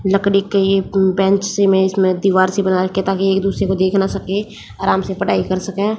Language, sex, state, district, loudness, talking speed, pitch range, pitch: Hindi, female, Haryana, Jhajjar, -16 LUFS, 230 wpm, 190-195 Hz, 195 Hz